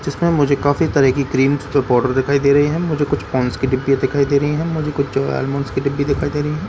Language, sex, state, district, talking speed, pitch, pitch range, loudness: Hindi, male, Bihar, Katihar, 275 wpm, 140 Hz, 135-145 Hz, -17 LUFS